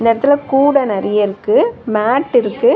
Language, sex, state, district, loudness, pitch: Tamil, female, Tamil Nadu, Chennai, -14 LUFS, 270 Hz